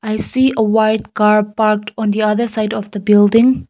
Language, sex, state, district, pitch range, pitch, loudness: English, female, Nagaland, Kohima, 210-220 Hz, 215 Hz, -14 LUFS